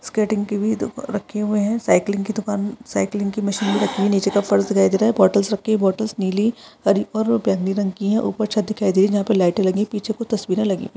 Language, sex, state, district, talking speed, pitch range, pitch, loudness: Hindi, female, Maharashtra, Solapur, 255 wpm, 200-215 Hz, 205 Hz, -20 LUFS